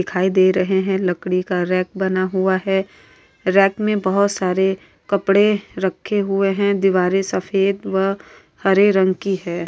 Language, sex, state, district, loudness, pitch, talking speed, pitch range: Hindi, female, Maharashtra, Aurangabad, -18 LUFS, 190 Hz, 155 wpm, 185-195 Hz